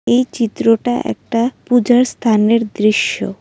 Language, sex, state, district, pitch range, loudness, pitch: Bengali, female, Assam, Kamrup Metropolitan, 220-245 Hz, -15 LUFS, 230 Hz